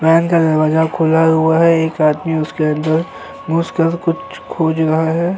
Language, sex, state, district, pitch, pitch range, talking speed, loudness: Hindi, male, Uttar Pradesh, Hamirpur, 160 Hz, 160-170 Hz, 165 wpm, -15 LUFS